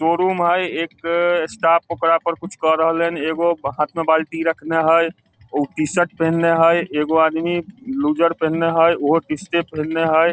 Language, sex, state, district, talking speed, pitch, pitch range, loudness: Maithili, male, Bihar, Samastipur, 185 wpm, 165 Hz, 160-170 Hz, -18 LUFS